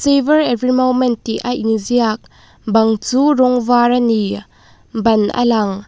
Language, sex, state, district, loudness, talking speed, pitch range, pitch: Mizo, female, Mizoram, Aizawl, -15 LUFS, 155 wpm, 220-255 Hz, 240 Hz